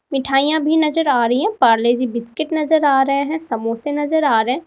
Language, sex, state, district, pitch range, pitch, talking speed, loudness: Hindi, female, Uttar Pradesh, Lalitpur, 240-315 Hz, 280 Hz, 220 wpm, -17 LUFS